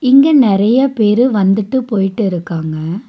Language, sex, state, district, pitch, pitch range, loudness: Tamil, female, Tamil Nadu, Nilgiris, 210 Hz, 195-255 Hz, -13 LUFS